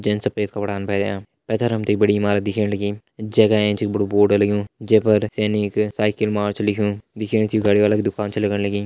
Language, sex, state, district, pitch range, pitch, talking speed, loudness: Hindi, male, Uttarakhand, Tehri Garhwal, 100-105 Hz, 105 Hz, 230 wpm, -20 LUFS